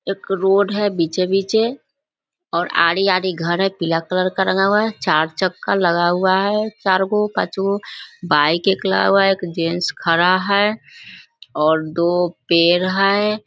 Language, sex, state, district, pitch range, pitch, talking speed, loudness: Hindi, female, Bihar, Madhepura, 175-200 Hz, 190 Hz, 145 wpm, -17 LUFS